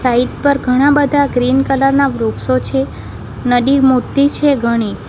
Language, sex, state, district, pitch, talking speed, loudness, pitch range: Gujarati, female, Gujarat, Valsad, 255 Hz, 155 wpm, -14 LUFS, 225-275 Hz